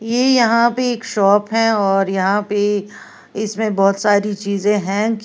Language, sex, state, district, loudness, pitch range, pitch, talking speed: Hindi, female, Uttar Pradesh, Lalitpur, -16 LUFS, 200-225 Hz, 210 Hz, 170 wpm